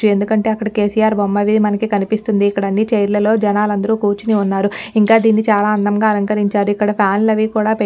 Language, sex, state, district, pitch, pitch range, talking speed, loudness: Telugu, female, Telangana, Nalgonda, 210 Hz, 205-220 Hz, 175 wpm, -15 LUFS